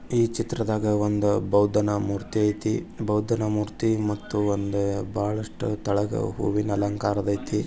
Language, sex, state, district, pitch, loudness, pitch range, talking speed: Kannada, male, Karnataka, Bijapur, 105 Hz, -25 LUFS, 100-110 Hz, 115 wpm